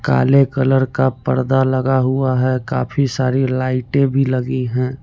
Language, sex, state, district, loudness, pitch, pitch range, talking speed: Hindi, male, Chandigarh, Chandigarh, -17 LUFS, 130 Hz, 130-135 Hz, 155 wpm